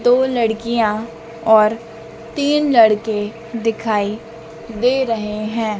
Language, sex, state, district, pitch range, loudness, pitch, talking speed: Hindi, female, Madhya Pradesh, Dhar, 215-230 Hz, -17 LUFS, 225 Hz, 95 wpm